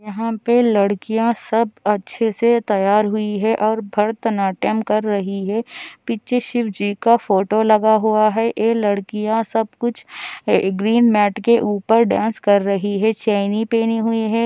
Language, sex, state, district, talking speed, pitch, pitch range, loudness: Hindi, female, Andhra Pradesh, Anantapur, 155 wpm, 220 Hz, 205-230 Hz, -18 LUFS